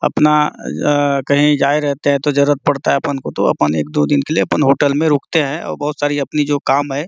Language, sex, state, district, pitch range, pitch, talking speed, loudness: Hindi, male, Chhattisgarh, Bastar, 140-150 Hz, 145 Hz, 255 wpm, -16 LUFS